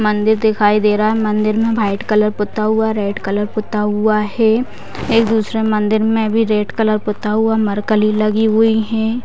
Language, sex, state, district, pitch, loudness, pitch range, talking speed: Hindi, female, Bihar, Purnia, 215 Hz, -15 LUFS, 210-220 Hz, 200 wpm